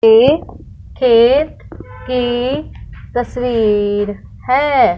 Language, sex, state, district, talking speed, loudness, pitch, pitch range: Hindi, male, Punjab, Fazilka, 60 wpm, -15 LUFS, 250 Hz, 235-280 Hz